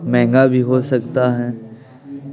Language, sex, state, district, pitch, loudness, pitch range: Hindi, male, Bihar, Patna, 125 Hz, -16 LUFS, 120-130 Hz